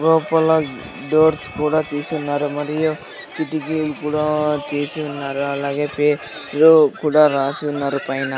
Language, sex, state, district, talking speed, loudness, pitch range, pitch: Telugu, male, Andhra Pradesh, Sri Satya Sai, 105 wpm, -19 LUFS, 145-155 Hz, 150 Hz